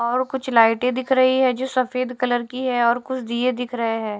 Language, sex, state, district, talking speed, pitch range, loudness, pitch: Hindi, female, Odisha, Sambalpur, 245 wpm, 235-255 Hz, -20 LUFS, 250 Hz